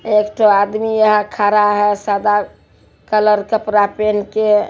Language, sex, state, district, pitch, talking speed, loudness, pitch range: Hindi, male, Bihar, Araria, 210 Hz, 140 wpm, -15 LUFS, 205-215 Hz